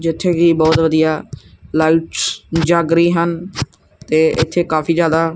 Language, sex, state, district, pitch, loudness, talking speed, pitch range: Punjabi, male, Punjab, Kapurthala, 165 Hz, -15 LUFS, 145 wpm, 160-170 Hz